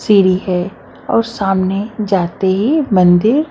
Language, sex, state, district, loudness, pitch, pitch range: Hindi, female, Maharashtra, Mumbai Suburban, -14 LUFS, 195 Hz, 185-220 Hz